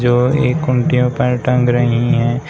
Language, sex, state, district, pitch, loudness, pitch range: Hindi, male, Uttar Pradesh, Shamli, 125 Hz, -15 LUFS, 120-130 Hz